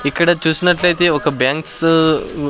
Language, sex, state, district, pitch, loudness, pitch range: Telugu, male, Andhra Pradesh, Sri Satya Sai, 160 Hz, -14 LUFS, 150-175 Hz